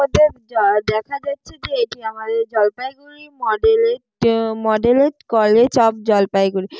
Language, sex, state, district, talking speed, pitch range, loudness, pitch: Bengali, female, West Bengal, Jalpaiguri, 115 wpm, 220-280 Hz, -17 LUFS, 230 Hz